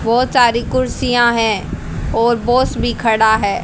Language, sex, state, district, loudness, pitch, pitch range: Hindi, female, Haryana, Charkhi Dadri, -15 LUFS, 235 Hz, 225-245 Hz